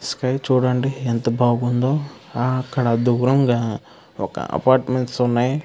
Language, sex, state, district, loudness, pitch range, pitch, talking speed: Telugu, male, Andhra Pradesh, Krishna, -20 LUFS, 120-130 Hz, 125 Hz, 105 wpm